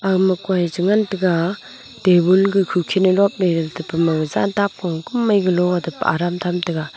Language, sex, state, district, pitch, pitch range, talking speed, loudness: Wancho, female, Arunachal Pradesh, Longding, 180 Hz, 170-195 Hz, 155 wpm, -18 LUFS